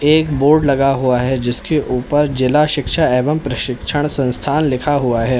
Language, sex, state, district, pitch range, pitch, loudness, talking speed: Hindi, male, Uttar Pradesh, Lalitpur, 125-150 Hz, 135 Hz, -16 LUFS, 165 wpm